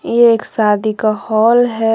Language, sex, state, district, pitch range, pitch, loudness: Hindi, female, Jharkhand, Deoghar, 215-235 Hz, 225 Hz, -13 LUFS